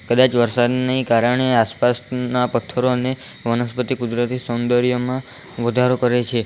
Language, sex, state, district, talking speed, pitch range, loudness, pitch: Gujarati, male, Gujarat, Valsad, 110 wpm, 120-125 Hz, -18 LUFS, 125 Hz